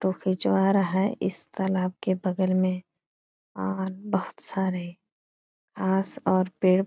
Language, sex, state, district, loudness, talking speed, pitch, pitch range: Hindi, female, Bihar, Supaul, -26 LUFS, 140 wpm, 190 Hz, 185-190 Hz